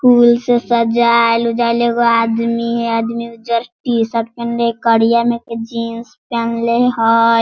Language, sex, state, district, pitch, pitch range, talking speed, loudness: Hindi, female, Bihar, Sitamarhi, 235 Hz, 230-235 Hz, 140 wpm, -15 LUFS